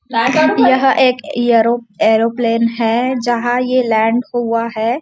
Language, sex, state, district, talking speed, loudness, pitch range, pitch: Hindi, female, Maharashtra, Nagpur, 105 wpm, -14 LUFS, 230-250 Hz, 240 Hz